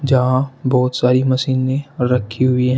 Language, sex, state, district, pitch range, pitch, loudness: Hindi, male, Uttar Pradesh, Shamli, 125-130 Hz, 130 Hz, -17 LUFS